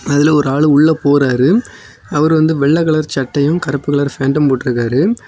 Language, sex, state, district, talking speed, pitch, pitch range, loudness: Tamil, male, Tamil Nadu, Kanyakumari, 160 wpm, 145 Hz, 140-155 Hz, -13 LUFS